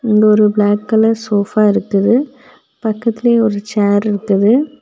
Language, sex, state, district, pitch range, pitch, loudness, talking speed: Tamil, female, Tamil Nadu, Kanyakumari, 205-230 Hz, 215 Hz, -14 LUFS, 125 wpm